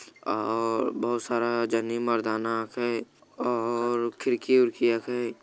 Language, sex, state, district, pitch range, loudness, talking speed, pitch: Magahi, male, Bihar, Jamui, 115-120 Hz, -27 LUFS, 120 wpm, 120 Hz